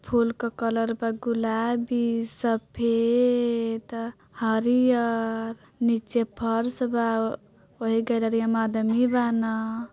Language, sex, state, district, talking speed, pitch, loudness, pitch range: Bhojpuri, female, Bihar, Gopalganj, 90 wpm, 230 Hz, -25 LUFS, 225-235 Hz